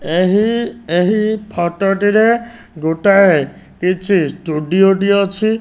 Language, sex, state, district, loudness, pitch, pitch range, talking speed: Odia, male, Odisha, Nuapada, -15 LUFS, 195 Hz, 175-215 Hz, 95 wpm